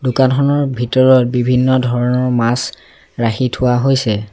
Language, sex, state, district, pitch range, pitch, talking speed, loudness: Assamese, male, Assam, Sonitpur, 120-130 Hz, 125 Hz, 110 wpm, -14 LUFS